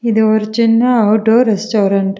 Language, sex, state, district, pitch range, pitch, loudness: Tamil, female, Tamil Nadu, Nilgiris, 210-230 Hz, 220 Hz, -12 LUFS